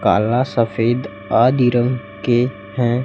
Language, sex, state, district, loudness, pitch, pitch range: Hindi, male, Chhattisgarh, Raipur, -18 LUFS, 120 Hz, 115-125 Hz